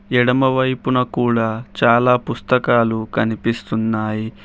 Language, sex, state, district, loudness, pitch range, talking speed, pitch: Telugu, male, Telangana, Hyderabad, -18 LUFS, 110-125 Hz, 80 wpm, 115 Hz